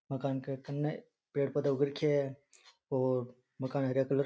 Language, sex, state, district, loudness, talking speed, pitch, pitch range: Rajasthani, male, Rajasthan, Nagaur, -34 LUFS, 185 wpm, 140 Hz, 135-140 Hz